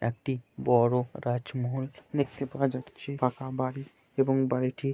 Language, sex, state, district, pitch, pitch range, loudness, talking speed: Bengali, male, West Bengal, Purulia, 130 Hz, 125-135 Hz, -30 LUFS, 135 wpm